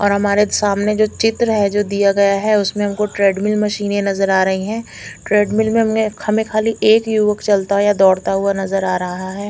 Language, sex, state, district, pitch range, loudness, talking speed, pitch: Hindi, female, Chandigarh, Chandigarh, 200-215 Hz, -16 LUFS, 200 wpm, 205 Hz